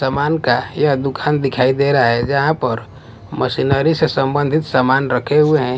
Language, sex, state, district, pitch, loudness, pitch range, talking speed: Hindi, male, Bihar, West Champaran, 135 Hz, -16 LUFS, 125-150 Hz, 175 wpm